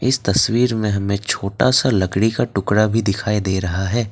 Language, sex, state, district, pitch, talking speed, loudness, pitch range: Hindi, male, Assam, Kamrup Metropolitan, 105 Hz, 205 wpm, -18 LUFS, 100-115 Hz